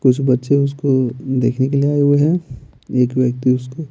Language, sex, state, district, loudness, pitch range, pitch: Hindi, male, Bihar, Patna, -17 LUFS, 125-140 Hz, 130 Hz